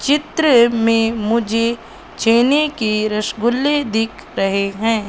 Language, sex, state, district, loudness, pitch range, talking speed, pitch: Hindi, female, Madhya Pradesh, Katni, -16 LUFS, 220-245 Hz, 105 wpm, 230 Hz